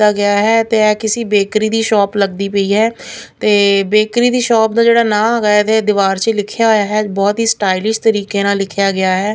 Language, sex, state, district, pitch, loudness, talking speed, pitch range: Punjabi, female, Punjab, Pathankot, 210 Hz, -13 LUFS, 210 wpm, 200-220 Hz